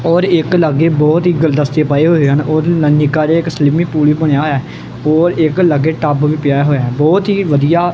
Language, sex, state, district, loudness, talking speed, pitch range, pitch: Punjabi, male, Punjab, Kapurthala, -12 LUFS, 240 wpm, 150-170 Hz, 155 Hz